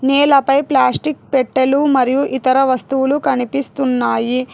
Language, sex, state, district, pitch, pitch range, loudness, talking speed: Telugu, female, Telangana, Hyderabad, 265 Hz, 245-275 Hz, -15 LUFS, 95 wpm